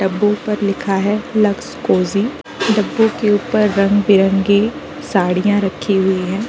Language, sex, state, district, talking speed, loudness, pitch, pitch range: Hindi, female, Uttar Pradesh, Varanasi, 140 wpm, -16 LUFS, 205 Hz, 195-210 Hz